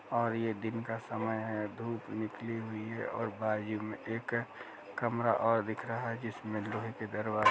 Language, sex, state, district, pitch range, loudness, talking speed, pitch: Hindi, male, Uttar Pradesh, Jalaun, 110-115 Hz, -36 LUFS, 185 wpm, 110 Hz